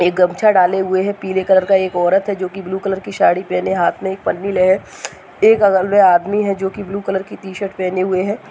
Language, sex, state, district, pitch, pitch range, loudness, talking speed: Hindi, male, Rajasthan, Nagaur, 190 Hz, 185-200 Hz, -16 LUFS, 270 wpm